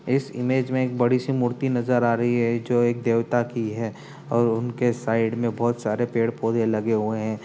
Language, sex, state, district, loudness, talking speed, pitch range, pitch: Hindi, male, Uttar Pradesh, Jyotiba Phule Nagar, -23 LUFS, 215 wpm, 115-125 Hz, 120 Hz